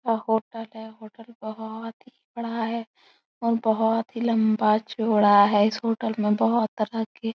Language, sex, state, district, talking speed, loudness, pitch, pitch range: Hindi, female, Uttar Pradesh, Etah, 165 wpm, -24 LUFS, 225 Hz, 220-230 Hz